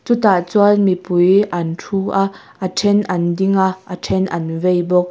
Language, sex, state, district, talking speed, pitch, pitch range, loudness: Mizo, female, Mizoram, Aizawl, 190 wpm, 190 Hz, 180-195 Hz, -16 LUFS